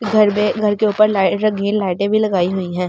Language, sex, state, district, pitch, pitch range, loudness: Hindi, female, Delhi, New Delhi, 205 Hz, 190-215 Hz, -16 LUFS